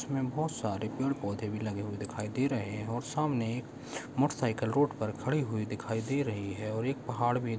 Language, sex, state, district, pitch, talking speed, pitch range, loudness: Hindi, male, Goa, North and South Goa, 120 Hz, 215 wpm, 110-135 Hz, -33 LUFS